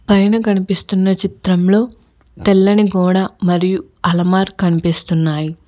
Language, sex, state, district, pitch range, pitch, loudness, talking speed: Telugu, female, Telangana, Hyderabad, 175-195 Hz, 190 Hz, -15 LUFS, 85 wpm